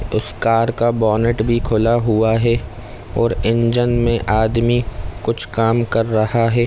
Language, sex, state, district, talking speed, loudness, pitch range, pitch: Hindi, male, Chhattisgarh, Korba, 155 wpm, -17 LUFS, 110-115 Hz, 115 Hz